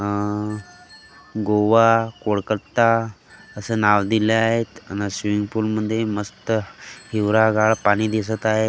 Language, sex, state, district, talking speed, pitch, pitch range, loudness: Marathi, male, Maharashtra, Gondia, 110 wpm, 110 Hz, 105-110 Hz, -20 LUFS